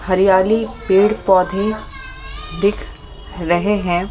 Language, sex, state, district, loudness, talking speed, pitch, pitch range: Hindi, female, Delhi, New Delhi, -16 LUFS, 90 wpm, 195 Hz, 180-210 Hz